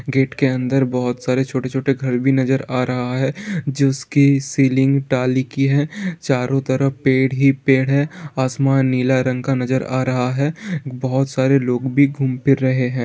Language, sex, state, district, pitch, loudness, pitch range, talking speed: Hindi, male, Bihar, Saran, 135 Hz, -18 LUFS, 130-140 Hz, 195 wpm